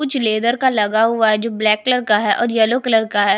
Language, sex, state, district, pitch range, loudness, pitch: Hindi, female, Chhattisgarh, Jashpur, 215-240 Hz, -16 LUFS, 220 Hz